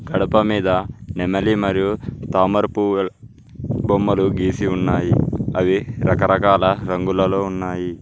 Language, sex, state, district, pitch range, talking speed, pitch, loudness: Telugu, male, Telangana, Mahabubabad, 95-105 Hz, 95 wpm, 95 Hz, -19 LUFS